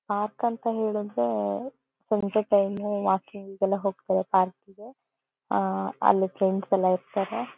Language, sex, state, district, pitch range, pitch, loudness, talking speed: Kannada, female, Karnataka, Shimoga, 190-215 Hz, 200 Hz, -26 LUFS, 120 wpm